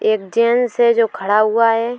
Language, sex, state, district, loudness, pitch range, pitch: Hindi, female, Uttar Pradesh, Etah, -15 LUFS, 215-235 Hz, 230 Hz